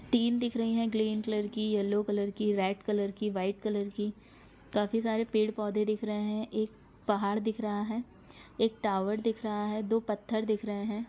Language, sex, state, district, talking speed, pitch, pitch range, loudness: Hindi, female, Chhattisgarh, Raigarh, 200 wpm, 215 Hz, 210-220 Hz, -32 LUFS